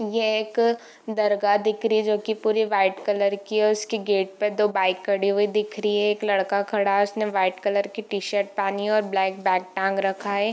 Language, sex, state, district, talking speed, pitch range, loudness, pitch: Hindi, female, Bihar, Darbhanga, 235 wpm, 200-215 Hz, -23 LUFS, 205 Hz